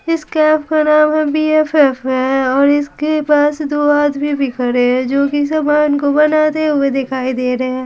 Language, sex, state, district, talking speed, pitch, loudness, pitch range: Hindi, female, Bihar, Patna, 190 wpm, 290 Hz, -14 LUFS, 270-305 Hz